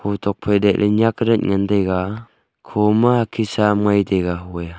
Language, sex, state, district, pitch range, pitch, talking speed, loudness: Wancho, male, Arunachal Pradesh, Longding, 100-110 Hz, 105 Hz, 175 wpm, -18 LUFS